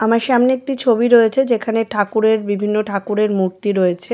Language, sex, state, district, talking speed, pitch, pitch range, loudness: Bengali, female, West Bengal, Jalpaiguri, 160 wpm, 220 Hz, 205-235 Hz, -16 LUFS